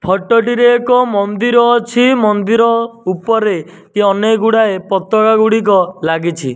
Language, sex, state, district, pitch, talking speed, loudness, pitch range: Odia, male, Odisha, Nuapada, 220 Hz, 120 wpm, -12 LUFS, 190-230 Hz